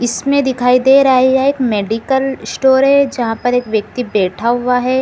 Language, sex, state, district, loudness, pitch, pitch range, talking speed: Hindi, female, Chhattisgarh, Bilaspur, -13 LUFS, 250 Hz, 235-265 Hz, 205 wpm